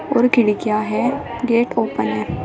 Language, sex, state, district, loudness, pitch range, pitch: Hindi, female, Uttar Pradesh, Shamli, -18 LUFS, 215-245 Hz, 235 Hz